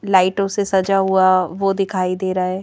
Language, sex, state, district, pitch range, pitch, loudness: Hindi, female, Madhya Pradesh, Bhopal, 185-195 Hz, 190 Hz, -17 LUFS